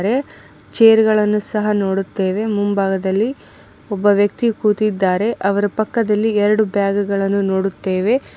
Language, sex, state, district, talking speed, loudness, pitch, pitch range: Kannada, female, Karnataka, Mysore, 95 wpm, -17 LUFS, 205 Hz, 195-215 Hz